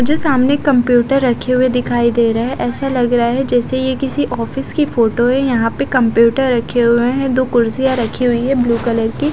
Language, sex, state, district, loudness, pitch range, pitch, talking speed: Hindi, female, Punjab, Fazilka, -15 LUFS, 235-265 Hz, 250 Hz, 225 wpm